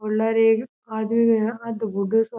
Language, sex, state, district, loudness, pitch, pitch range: Rajasthani, male, Rajasthan, Churu, -22 LUFS, 225 Hz, 220-230 Hz